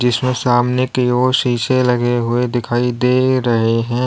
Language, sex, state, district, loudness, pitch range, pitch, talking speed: Hindi, male, Uttar Pradesh, Lalitpur, -16 LUFS, 120-125 Hz, 125 Hz, 165 wpm